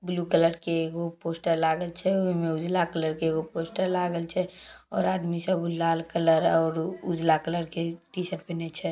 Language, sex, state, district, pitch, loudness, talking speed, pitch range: Maithili, female, Bihar, Samastipur, 170 Hz, -27 LUFS, 190 wpm, 165-180 Hz